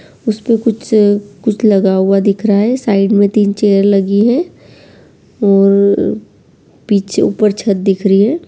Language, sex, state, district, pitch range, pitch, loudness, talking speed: Hindi, male, Bihar, Kishanganj, 200-220 Hz, 205 Hz, -12 LUFS, 170 wpm